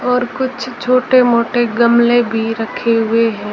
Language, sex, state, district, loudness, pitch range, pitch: Hindi, male, Rajasthan, Jaisalmer, -14 LUFS, 230-250 Hz, 235 Hz